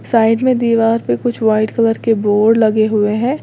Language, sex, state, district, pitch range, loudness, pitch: Hindi, female, Uttar Pradesh, Lalitpur, 215-230 Hz, -14 LUFS, 225 Hz